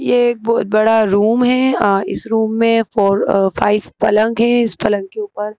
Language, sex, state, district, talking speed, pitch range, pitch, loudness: Hindi, female, Madhya Pradesh, Bhopal, 195 wpm, 205-230 Hz, 215 Hz, -15 LUFS